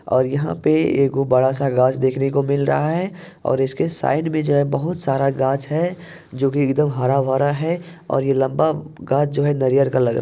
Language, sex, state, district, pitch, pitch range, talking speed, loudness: Hindi, male, Bihar, Purnia, 140 Hz, 135-155 Hz, 225 wpm, -19 LUFS